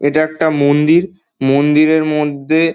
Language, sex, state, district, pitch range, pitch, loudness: Bengali, male, West Bengal, Dakshin Dinajpur, 145-160 Hz, 155 Hz, -13 LUFS